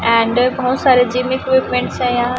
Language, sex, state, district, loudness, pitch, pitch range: Hindi, female, Chhattisgarh, Raipur, -15 LUFS, 250 Hz, 245-260 Hz